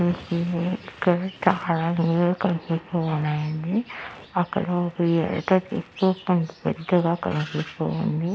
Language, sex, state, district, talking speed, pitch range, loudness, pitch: Telugu, female, Andhra Pradesh, Annamaya, 80 wpm, 165-185 Hz, -24 LUFS, 175 Hz